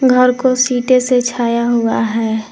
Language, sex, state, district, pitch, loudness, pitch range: Hindi, female, Jharkhand, Garhwa, 245 Hz, -14 LUFS, 230-250 Hz